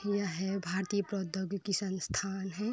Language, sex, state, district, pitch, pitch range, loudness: Hindi, female, Uttar Pradesh, Varanasi, 195 Hz, 190-200 Hz, -35 LUFS